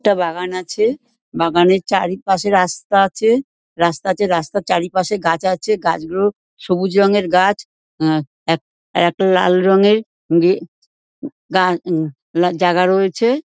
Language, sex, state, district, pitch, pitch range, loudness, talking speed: Bengali, female, West Bengal, Dakshin Dinajpur, 185 Hz, 175-200 Hz, -16 LUFS, 125 wpm